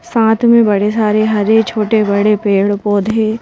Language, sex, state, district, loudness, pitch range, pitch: Hindi, female, Madhya Pradesh, Bhopal, -12 LUFS, 205-225 Hz, 215 Hz